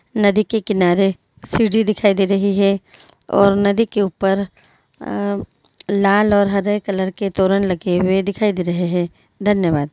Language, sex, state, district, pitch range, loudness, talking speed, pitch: Hindi, female, Bihar, Begusarai, 185-205 Hz, -17 LUFS, 155 wpm, 200 Hz